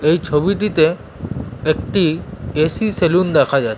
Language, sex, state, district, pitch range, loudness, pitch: Bengali, male, West Bengal, Kolkata, 155-185 Hz, -17 LUFS, 160 Hz